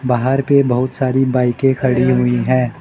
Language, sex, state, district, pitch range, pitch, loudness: Hindi, male, Arunachal Pradesh, Lower Dibang Valley, 125-130 Hz, 130 Hz, -15 LUFS